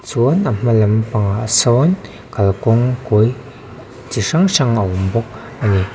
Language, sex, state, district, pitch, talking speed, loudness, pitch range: Mizo, male, Mizoram, Aizawl, 115 Hz, 160 wpm, -16 LUFS, 105-125 Hz